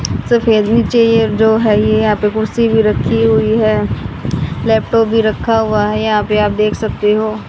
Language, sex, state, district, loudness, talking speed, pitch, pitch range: Hindi, female, Haryana, Charkhi Dadri, -13 LUFS, 190 wpm, 220 Hz, 210-225 Hz